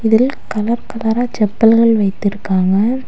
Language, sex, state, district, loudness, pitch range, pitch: Tamil, female, Tamil Nadu, Kanyakumari, -15 LUFS, 205-235 Hz, 225 Hz